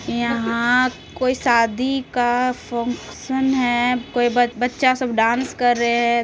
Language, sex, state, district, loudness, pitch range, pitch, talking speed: Maithili, female, Bihar, Supaul, -19 LUFS, 235-255 Hz, 245 Hz, 115 wpm